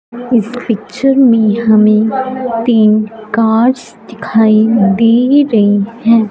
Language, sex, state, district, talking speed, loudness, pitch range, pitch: Hindi, female, Punjab, Fazilka, 95 wpm, -11 LUFS, 215-245 Hz, 230 Hz